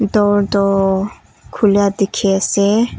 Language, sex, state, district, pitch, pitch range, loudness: Nagamese, female, Nagaland, Kohima, 200 Hz, 195-205 Hz, -15 LUFS